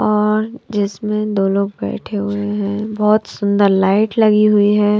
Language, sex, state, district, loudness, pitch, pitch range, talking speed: Hindi, female, Bihar, Katihar, -16 LUFS, 210 Hz, 205-215 Hz, 145 wpm